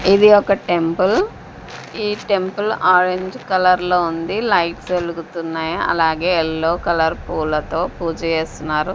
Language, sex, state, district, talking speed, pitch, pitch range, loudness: Telugu, female, Andhra Pradesh, Sri Satya Sai, 115 wpm, 175 Hz, 165-190 Hz, -18 LUFS